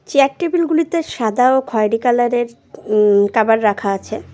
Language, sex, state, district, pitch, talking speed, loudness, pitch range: Bengali, female, West Bengal, Cooch Behar, 240 Hz, 140 wpm, -16 LUFS, 215-275 Hz